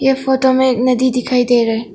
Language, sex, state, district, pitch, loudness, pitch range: Hindi, female, Arunachal Pradesh, Longding, 255 Hz, -14 LUFS, 245-260 Hz